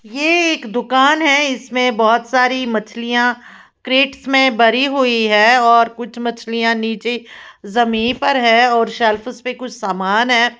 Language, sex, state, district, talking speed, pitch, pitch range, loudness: Hindi, female, Uttar Pradesh, Lalitpur, 145 wpm, 240 Hz, 230-255 Hz, -15 LUFS